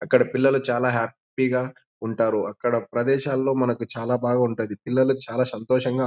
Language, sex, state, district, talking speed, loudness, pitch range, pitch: Telugu, male, Andhra Pradesh, Anantapur, 140 wpm, -23 LUFS, 115-130 Hz, 125 Hz